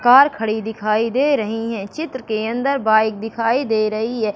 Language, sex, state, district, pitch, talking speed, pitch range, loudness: Hindi, female, Madhya Pradesh, Katni, 225 Hz, 195 wpm, 215-250 Hz, -19 LUFS